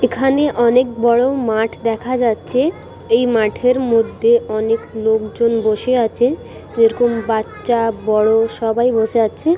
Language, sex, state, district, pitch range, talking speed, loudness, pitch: Bengali, female, West Bengal, Purulia, 225-250 Hz, 120 wpm, -16 LUFS, 235 Hz